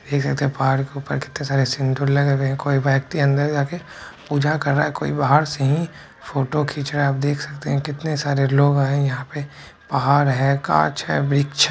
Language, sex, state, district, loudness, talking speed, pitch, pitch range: Hindi, male, Bihar, Purnia, -20 LUFS, 230 wpm, 140 Hz, 135-145 Hz